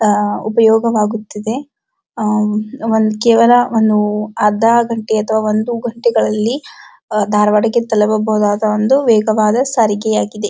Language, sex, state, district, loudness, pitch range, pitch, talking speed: Kannada, male, Karnataka, Dharwad, -14 LUFS, 210-230 Hz, 220 Hz, 95 wpm